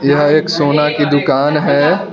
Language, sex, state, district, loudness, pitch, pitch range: Hindi, male, Arunachal Pradesh, Lower Dibang Valley, -12 LUFS, 145 Hz, 145-150 Hz